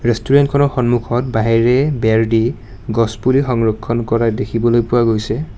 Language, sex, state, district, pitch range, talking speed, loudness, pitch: Assamese, male, Assam, Kamrup Metropolitan, 115-130 Hz, 140 wpm, -15 LUFS, 120 Hz